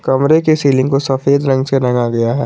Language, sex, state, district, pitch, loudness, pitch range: Hindi, male, Jharkhand, Garhwa, 135 Hz, -13 LUFS, 130-140 Hz